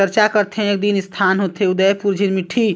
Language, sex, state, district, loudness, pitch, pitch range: Chhattisgarhi, female, Chhattisgarh, Sarguja, -17 LUFS, 200 Hz, 190-205 Hz